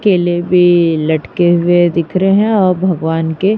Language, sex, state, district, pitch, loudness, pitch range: Hindi, female, Uttar Pradesh, Jyotiba Phule Nagar, 175 Hz, -12 LUFS, 165-185 Hz